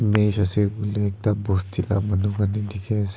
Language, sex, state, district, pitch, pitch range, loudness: Nagamese, male, Nagaland, Kohima, 105 Hz, 100-105 Hz, -23 LUFS